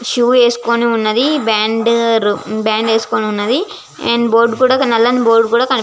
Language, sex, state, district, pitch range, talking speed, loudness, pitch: Telugu, female, Andhra Pradesh, Visakhapatnam, 225-245 Hz, 145 wpm, -13 LUFS, 235 Hz